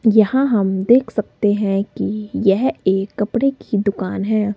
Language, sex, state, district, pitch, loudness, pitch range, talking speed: Hindi, female, Himachal Pradesh, Shimla, 210 Hz, -18 LUFS, 195-235 Hz, 160 wpm